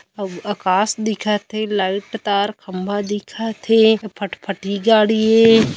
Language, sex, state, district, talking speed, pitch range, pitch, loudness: Hindi, female, Chhattisgarh, Kabirdham, 125 wpm, 200-220 Hz, 210 Hz, -18 LUFS